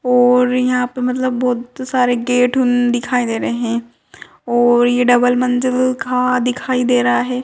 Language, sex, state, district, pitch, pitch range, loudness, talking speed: Hindi, female, Rajasthan, Churu, 250 Hz, 245-250 Hz, -16 LUFS, 160 wpm